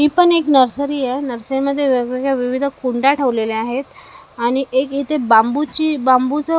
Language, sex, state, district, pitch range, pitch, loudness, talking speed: Marathi, female, Maharashtra, Mumbai Suburban, 250-285 Hz, 270 Hz, -17 LUFS, 165 wpm